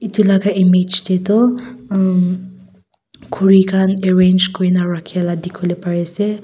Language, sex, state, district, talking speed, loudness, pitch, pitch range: Nagamese, female, Nagaland, Kohima, 120 wpm, -15 LUFS, 185 Hz, 180-200 Hz